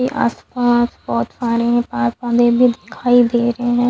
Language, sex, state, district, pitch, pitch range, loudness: Hindi, female, Chhattisgarh, Sukma, 240 Hz, 235-245 Hz, -16 LUFS